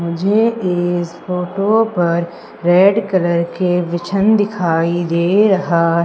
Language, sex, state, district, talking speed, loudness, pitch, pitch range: Hindi, female, Madhya Pradesh, Umaria, 110 wpm, -15 LUFS, 175 Hz, 170-195 Hz